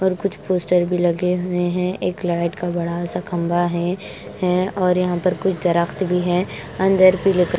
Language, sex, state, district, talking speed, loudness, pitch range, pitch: Hindi, female, Bihar, West Champaran, 205 wpm, -20 LUFS, 175-185 Hz, 180 Hz